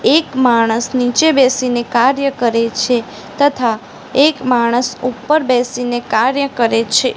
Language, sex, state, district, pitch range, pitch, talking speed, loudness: Gujarati, female, Gujarat, Gandhinagar, 235-265 Hz, 250 Hz, 125 wpm, -14 LUFS